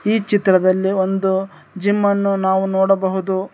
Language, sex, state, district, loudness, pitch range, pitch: Kannada, male, Karnataka, Bangalore, -17 LUFS, 190-200 Hz, 190 Hz